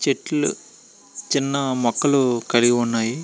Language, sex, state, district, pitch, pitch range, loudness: Telugu, male, Andhra Pradesh, Srikakulam, 120 Hz, 120-140 Hz, -20 LUFS